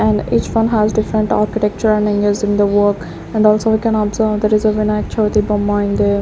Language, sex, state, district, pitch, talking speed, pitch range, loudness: English, female, Chandigarh, Chandigarh, 210 Hz, 230 wpm, 205-215 Hz, -15 LUFS